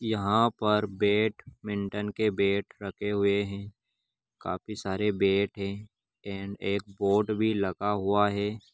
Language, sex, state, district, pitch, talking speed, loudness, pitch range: Magahi, male, Bihar, Gaya, 100 Hz, 145 wpm, -28 LUFS, 100-105 Hz